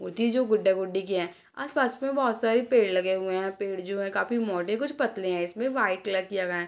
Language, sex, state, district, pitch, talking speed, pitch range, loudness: Hindi, female, Bihar, Purnia, 200 Hz, 250 wpm, 190-240 Hz, -27 LUFS